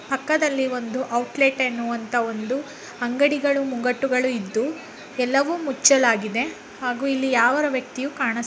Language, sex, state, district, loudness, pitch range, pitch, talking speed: Kannada, female, Karnataka, Raichur, -22 LUFS, 240-275 Hz, 260 Hz, 155 wpm